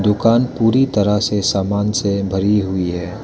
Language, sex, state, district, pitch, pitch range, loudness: Hindi, male, Arunachal Pradesh, Lower Dibang Valley, 105 Hz, 100-110 Hz, -17 LUFS